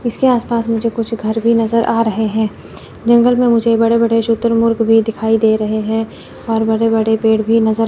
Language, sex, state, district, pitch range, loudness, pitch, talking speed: Hindi, female, Chandigarh, Chandigarh, 220-230 Hz, -14 LUFS, 225 Hz, 205 wpm